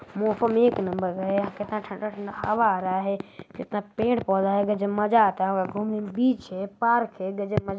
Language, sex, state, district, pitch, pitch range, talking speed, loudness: Hindi, male, Chhattisgarh, Balrampur, 205 Hz, 195-215 Hz, 190 wpm, -25 LUFS